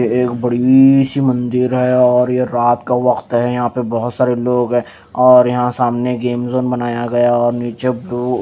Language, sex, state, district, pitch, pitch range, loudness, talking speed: Hindi, female, Odisha, Khordha, 125 Hz, 120-125 Hz, -14 LUFS, 215 wpm